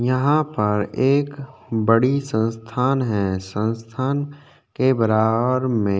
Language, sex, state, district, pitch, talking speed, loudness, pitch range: Hindi, male, Uttarakhand, Tehri Garhwal, 125 Hz, 110 wpm, -21 LUFS, 110-135 Hz